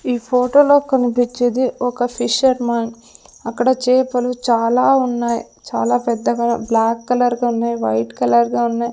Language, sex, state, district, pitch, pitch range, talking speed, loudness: Telugu, female, Andhra Pradesh, Sri Satya Sai, 240 Hz, 230-250 Hz, 135 wpm, -17 LUFS